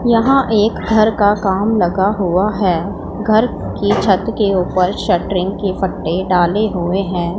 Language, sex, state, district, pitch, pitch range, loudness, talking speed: Hindi, female, Punjab, Pathankot, 195 Hz, 185-215 Hz, -15 LUFS, 155 wpm